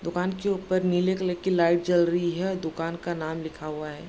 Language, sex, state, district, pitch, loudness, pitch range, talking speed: Hindi, female, Bihar, Darbhanga, 175 Hz, -26 LUFS, 165-185 Hz, 235 wpm